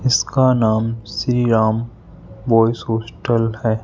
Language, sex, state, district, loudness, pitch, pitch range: Hindi, male, Madhya Pradesh, Bhopal, -18 LUFS, 115 Hz, 110-120 Hz